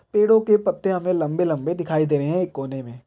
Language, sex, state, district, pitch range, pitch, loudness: Hindi, male, Bihar, Purnia, 150-190 Hz, 170 Hz, -21 LUFS